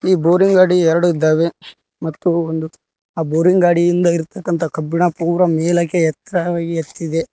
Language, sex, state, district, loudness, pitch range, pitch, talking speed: Kannada, male, Karnataka, Koppal, -16 LUFS, 165-175 Hz, 170 Hz, 130 wpm